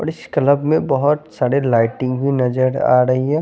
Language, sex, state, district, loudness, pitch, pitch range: Hindi, male, Chandigarh, Chandigarh, -17 LUFS, 135 Hz, 125-145 Hz